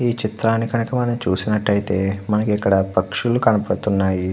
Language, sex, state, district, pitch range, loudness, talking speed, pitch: Telugu, male, Andhra Pradesh, Krishna, 95-115 Hz, -20 LUFS, 125 wpm, 105 Hz